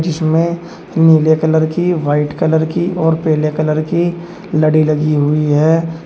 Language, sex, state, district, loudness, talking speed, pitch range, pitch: Hindi, male, Uttar Pradesh, Shamli, -14 LUFS, 150 wpm, 155-170 Hz, 160 Hz